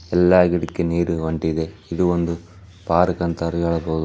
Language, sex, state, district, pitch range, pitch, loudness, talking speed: Kannada, male, Karnataka, Chamarajanagar, 85-90 Hz, 85 Hz, -20 LUFS, 150 wpm